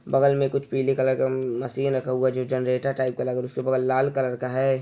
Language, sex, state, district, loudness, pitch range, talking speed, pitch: Hindi, male, Andhra Pradesh, Visakhapatnam, -24 LUFS, 130-135 Hz, 260 wpm, 130 Hz